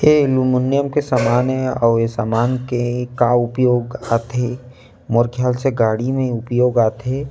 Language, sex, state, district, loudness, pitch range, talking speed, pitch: Chhattisgarhi, male, Chhattisgarh, Rajnandgaon, -18 LUFS, 120-130 Hz, 155 wpm, 125 Hz